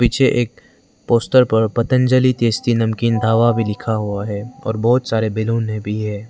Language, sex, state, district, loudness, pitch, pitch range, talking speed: Hindi, male, Arunachal Pradesh, Lower Dibang Valley, -17 LUFS, 115 Hz, 110-120 Hz, 160 wpm